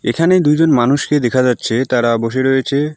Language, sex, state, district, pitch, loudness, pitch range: Bengali, male, West Bengal, Alipurduar, 130 Hz, -14 LUFS, 120-150 Hz